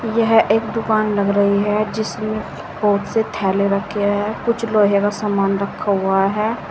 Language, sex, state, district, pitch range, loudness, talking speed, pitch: Hindi, female, Uttar Pradesh, Saharanpur, 200-220 Hz, -18 LUFS, 170 wpm, 210 Hz